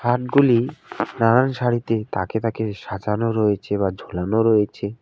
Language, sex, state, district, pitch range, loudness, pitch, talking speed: Bengali, male, West Bengal, Alipurduar, 105-120 Hz, -21 LUFS, 110 Hz, 130 wpm